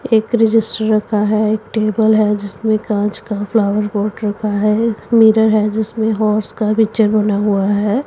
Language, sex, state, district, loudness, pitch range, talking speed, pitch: Hindi, female, Punjab, Pathankot, -15 LUFS, 210-220 Hz, 170 wpm, 215 Hz